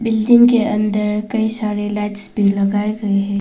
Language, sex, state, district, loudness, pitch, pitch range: Hindi, female, Arunachal Pradesh, Papum Pare, -16 LUFS, 210 Hz, 205-220 Hz